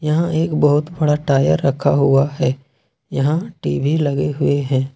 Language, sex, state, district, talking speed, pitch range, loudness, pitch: Hindi, male, Jharkhand, Ranchi, 155 wpm, 135-150 Hz, -17 LUFS, 140 Hz